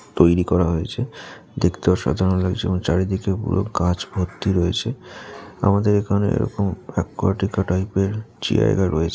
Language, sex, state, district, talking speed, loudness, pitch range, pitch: Bengali, male, West Bengal, Jalpaiguri, 140 wpm, -21 LUFS, 90-100 Hz, 95 Hz